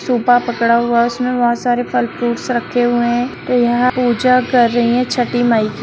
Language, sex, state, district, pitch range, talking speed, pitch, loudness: Hindi, female, Bihar, Sitamarhi, 235-245 Hz, 215 wpm, 240 Hz, -15 LUFS